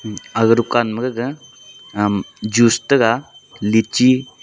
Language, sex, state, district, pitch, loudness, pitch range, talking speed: Wancho, male, Arunachal Pradesh, Longding, 115 Hz, -17 LUFS, 110-125 Hz, 110 wpm